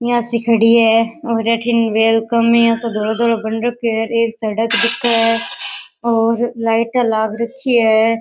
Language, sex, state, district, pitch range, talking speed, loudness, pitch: Rajasthani, female, Rajasthan, Nagaur, 225-235 Hz, 180 wpm, -15 LUFS, 230 Hz